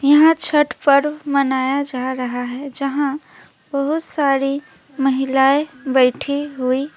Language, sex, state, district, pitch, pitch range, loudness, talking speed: Hindi, female, West Bengal, Alipurduar, 275 Hz, 265-290 Hz, -18 LUFS, 110 wpm